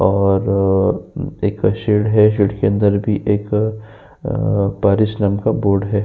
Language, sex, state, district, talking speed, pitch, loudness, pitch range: Hindi, male, Uttar Pradesh, Jyotiba Phule Nagar, 150 wpm, 105 Hz, -17 LUFS, 100-105 Hz